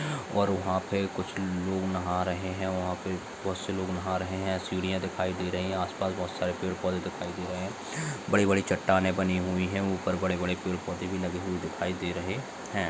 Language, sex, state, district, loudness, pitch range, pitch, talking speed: Hindi, male, Maharashtra, Sindhudurg, -30 LUFS, 90-95 Hz, 95 Hz, 205 wpm